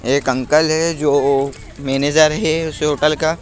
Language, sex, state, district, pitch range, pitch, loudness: Hindi, male, Madhya Pradesh, Bhopal, 140-155 Hz, 150 Hz, -16 LUFS